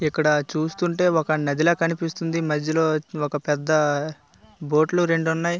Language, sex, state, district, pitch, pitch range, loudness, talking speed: Telugu, male, Andhra Pradesh, Visakhapatnam, 155 Hz, 150-165 Hz, -22 LUFS, 130 wpm